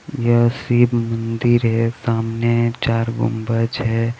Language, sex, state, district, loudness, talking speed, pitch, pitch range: Hindi, male, Jharkhand, Deoghar, -18 LUFS, 115 wpm, 115 Hz, 115-120 Hz